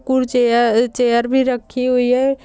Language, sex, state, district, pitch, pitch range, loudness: Hindi, female, Rajasthan, Churu, 250 Hz, 240-260 Hz, -16 LUFS